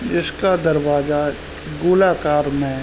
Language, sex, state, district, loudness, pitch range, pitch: Hindi, male, Uttar Pradesh, Ghazipur, -18 LUFS, 145-170 Hz, 150 Hz